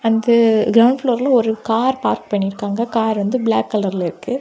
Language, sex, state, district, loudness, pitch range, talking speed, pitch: Tamil, female, Tamil Nadu, Kanyakumari, -17 LUFS, 205-240 Hz, 165 wpm, 225 Hz